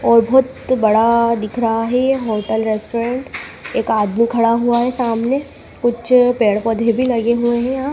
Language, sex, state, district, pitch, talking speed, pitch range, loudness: Hindi, female, Madhya Pradesh, Dhar, 235 Hz, 160 wpm, 225-250 Hz, -16 LUFS